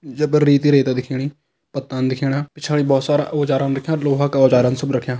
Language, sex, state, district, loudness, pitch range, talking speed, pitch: Hindi, male, Uttarakhand, Tehri Garhwal, -18 LUFS, 135-145 Hz, 205 wpm, 140 Hz